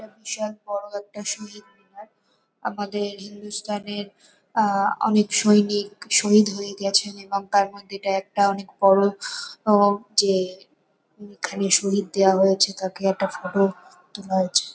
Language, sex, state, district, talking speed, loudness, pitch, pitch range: Bengali, female, West Bengal, North 24 Parganas, 140 wpm, -22 LUFS, 200 Hz, 195-210 Hz